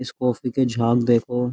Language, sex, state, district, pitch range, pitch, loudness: Hindi, male, Uttar Pradesh, Jyotiba Phule Nagar, 120-125 Hz, 125 Hz, -21 LUFS